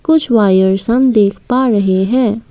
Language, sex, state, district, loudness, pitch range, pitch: Hindi, female, Assam, Kamrup Metropolitan, -12 LUFS, 195-255 Hz, 225 Hz